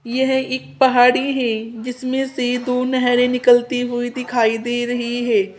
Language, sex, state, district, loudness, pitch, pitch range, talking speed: Hindi, female, Uttar Pradesh, Saharanpur, -18 LUFS, 245 Hz, 240-255 Hz, 150 wpm